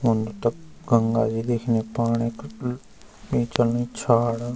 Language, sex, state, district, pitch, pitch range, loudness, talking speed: Garhwali, male, Uttarakhand, Uttarkashi, 115 Hz, 115-120 Hz, -24 LUFS, 120 wpm